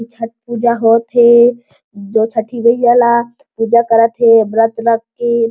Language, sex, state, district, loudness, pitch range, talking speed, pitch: Chhattisgarhi, female, Chhattisgarh, Jashpur, -12 LUFS, 225-235 Hz, 165 wpm, 230 Hz